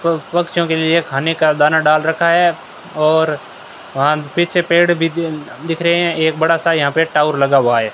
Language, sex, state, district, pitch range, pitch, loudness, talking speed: Hindi, male, Rajasthan, Bikaner, 150-170 Hz, 160 Hz, -15 LUFS, 210 wpm